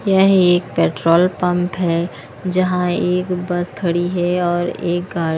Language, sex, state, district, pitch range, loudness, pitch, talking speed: Hindi, female, Punjab, Kapurthala, 175-180 Hz, -17 LUFS, 175 Hz, 155 wpm